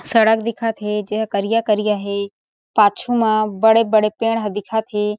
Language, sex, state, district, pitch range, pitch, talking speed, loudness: Chhattisgarhi, female, Chhattisgarh, Sarguja, 210-225 Hz, 215 Hz, 175 wpm, -18 LUFS